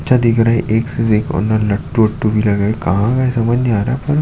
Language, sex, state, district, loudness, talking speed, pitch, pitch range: Hindi, male, Chhattisgarh, Sukma, -15 LUFS, 300 wpm, 115 Hz, 105-120 Hz